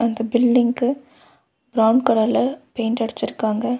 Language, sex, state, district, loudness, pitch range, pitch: Tamil, female, Tamil Nadu, Nilgiris, -20 LUFS, 225-255 Hz, 240 Hz